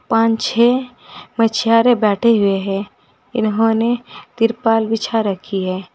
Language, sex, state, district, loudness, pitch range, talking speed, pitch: Hindi, female, Uttar Pradesh, Saharanpur, -17 LUFS, 210-235 Hz, 110 wpm, 225 Hz